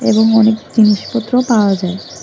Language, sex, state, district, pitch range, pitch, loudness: Bengali, female, Tripura, West Tripura, 195-225 Hz, 220 Hz, -13 LUFS